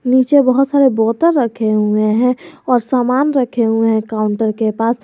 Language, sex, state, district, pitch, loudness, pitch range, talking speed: Hindi, male, Jharkhand, Garhwa, 245 Hz, -14 LUFS, 220-265 Hz, 180 wpm